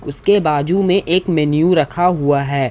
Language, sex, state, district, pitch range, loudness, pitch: Hindi, male, Jharkhand, Ranchi, 145-180 Hz, -15 LUFS, 160 Hz